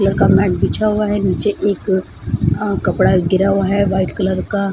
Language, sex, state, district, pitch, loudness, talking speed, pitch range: Hindi, female, Bihar, Samastipur, 195 Hz, -16 LUFS, 205 wpm, 190-205 Hz